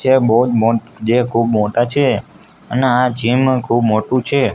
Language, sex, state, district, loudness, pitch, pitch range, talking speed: Gujarati, male, Gujarat, Gandhinagar, -15 LUFS, 120 Hz, 115-130 Hz, 170 wpm